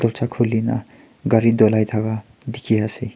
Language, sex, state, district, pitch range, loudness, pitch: Nagamese, male, Nagaland, Kohima, 110-120 Hz, -19 LUFS, 115 Hz